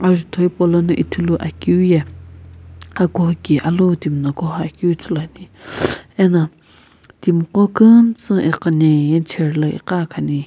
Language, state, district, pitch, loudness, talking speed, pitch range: Sumi, Nagaland, Kohima, 165 Hz, -16 LUFS, 95 wpm, 150-180 Hz